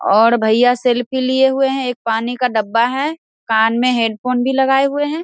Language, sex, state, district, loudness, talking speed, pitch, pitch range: Hindi, female, Bihar, Vaishali, -16 LUFS, 215 wpm, 250 Hz, 230-265 Hz